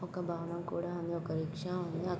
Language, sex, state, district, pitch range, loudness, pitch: Telugu, female, Andhra Pradesh, Guntur, 170-180 Hz, -38 LUFS, 170 Hz